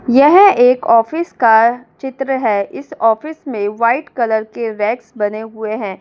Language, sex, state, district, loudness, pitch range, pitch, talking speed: Hindi, female, Delhi, New Delhi, -14 LUFS, 220-265 Hz, 230 Hz, 160 wpm